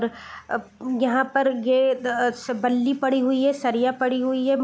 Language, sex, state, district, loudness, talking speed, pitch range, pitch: Hindi, female, Bihar, East Champaran, -23 LUFS, 170 wpm, 245-265 Hz, 255 Hz